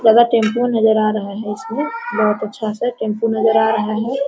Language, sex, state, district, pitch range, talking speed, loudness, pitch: Hindi, female, Bihar, Araria, 215-235 Hz, 180 wpm, -17 LUFS, 220 Hz